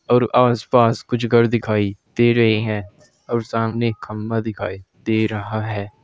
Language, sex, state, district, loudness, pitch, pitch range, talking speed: Hindi, male, Uttar Pradesh, Saharanpur, -19 LUFS, 110 Hz, 110-120 Hz, 160 wpm